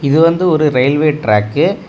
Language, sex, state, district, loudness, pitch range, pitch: Tamil, male, Tamil Nadu, Kanyakumari, -13 LUFS, 130-160 Hz, 150 Hz